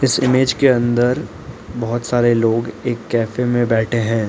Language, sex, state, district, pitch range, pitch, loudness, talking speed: Hindi, male, Arunachal Pradesh, Lower Dibang Valley, 115-125 Hz, 120 Hz, -17 LUFS, 170 wpm